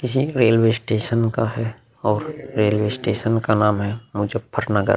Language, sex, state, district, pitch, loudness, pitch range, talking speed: Hindi, male, Uttar Pradesh, Muzaffarnagar, 115 Hz, -21 LUFS, 105-115 Hz, 145 wpm